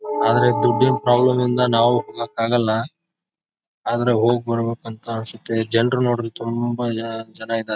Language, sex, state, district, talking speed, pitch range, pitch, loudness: Kannada, male, Karnataka, Bijapur, 115 wpm, 115-125 Hz, 120 Hz, -20 LUFS